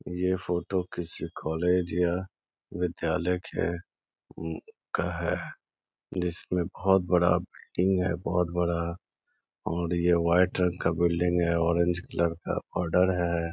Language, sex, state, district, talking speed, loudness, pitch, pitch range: Hindi, male, Bihar, Gaya, 125 wpm, -28 LUFS, 90 Hz, 85-90 Hz